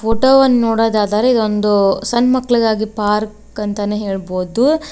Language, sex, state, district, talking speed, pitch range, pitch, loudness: Kannada, female, Karnataka, Koppal, 110 wpm, 210-240 Hz, 220 Hz, -15 LUFS